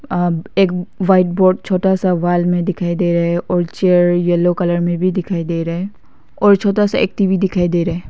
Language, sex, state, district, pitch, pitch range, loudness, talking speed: Hindi, female, Arunachal Pradesh, Papum Pare, 180 Hz, 175-190 Hz, -16 LUFS, 230 wpm